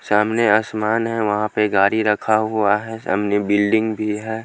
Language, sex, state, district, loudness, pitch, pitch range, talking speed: Hindi, male, Haryana, Jhajjar, -19 LUFS, 105 Hz, 105-110 Hz, 175 wpm